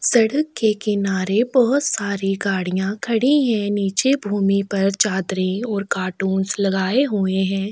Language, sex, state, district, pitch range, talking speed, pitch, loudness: Hindi, female, Chhattisgarh, Sukma, 190-230 Hz, 140 wpm, 200 Hz, -20 LUFS